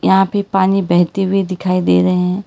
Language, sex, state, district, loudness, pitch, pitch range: Hindi, female, Karnataka, Bangalore, -15 LUFS, 190 Hz, 180-195 Hz